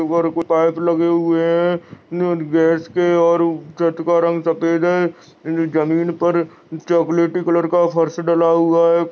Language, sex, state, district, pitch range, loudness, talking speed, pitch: Hindi, male, Chhattisgarh, Bastar, 165-170 Hz, -17 LUFS, 170 wpm, 170 Hz